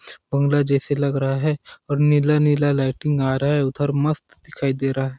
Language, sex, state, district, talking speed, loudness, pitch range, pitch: Hindi, male, Chhattisgarh, Sarguja, 210 wpm, -21 LUFS, 135-145 Hz, 140 Hz